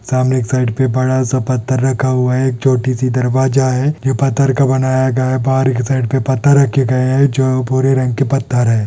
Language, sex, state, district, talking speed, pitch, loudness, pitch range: Hindi, male, Andhra Pradesh, Anantapur, 185 wpm, 130 Hz, -14 LUFS, 130-135 Hz